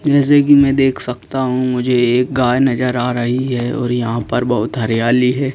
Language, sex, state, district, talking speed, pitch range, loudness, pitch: Hindi, male, Madhya Pradesh, Bhopal, 205 wpm, 120-135 Hz, -15 LUFS, 125 Hz